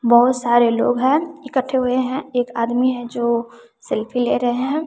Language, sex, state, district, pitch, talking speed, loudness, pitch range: Hindi, female, Bihar, West Champaran, 245 Hz, 185 wpm, -19 LUFS, 235-260 Hz